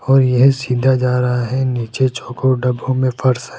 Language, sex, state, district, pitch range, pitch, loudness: Hindi, male, Rajasthan, Jaipur, 125-130 Hz, 130 Hz, -16 LUFS